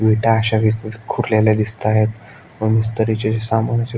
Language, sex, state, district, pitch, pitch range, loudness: Marathi, male, Maharashtra, Aurangabad, 110 Hz, 110-115 Hz, -18 LUFS